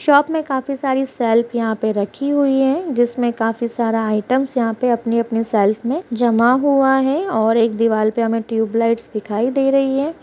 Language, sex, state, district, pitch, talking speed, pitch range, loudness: Hindi, female, Bihar, Saharsa, 235 Hz, 185 wpm, 225-270 Hz, -18 LUFS